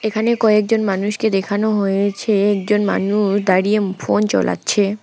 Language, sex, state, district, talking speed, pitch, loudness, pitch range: Bengali, female, West Bengal, Alipurduar, 130 wpm, 205 Hz, -17 LUFS, 195-210 Hz